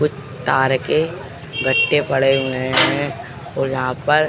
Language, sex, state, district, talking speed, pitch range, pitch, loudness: Hindi, male, Uttar Pradesh, Jalaun, 155 wpm, 130-145 Hz, 135 Hz, -18 LUFS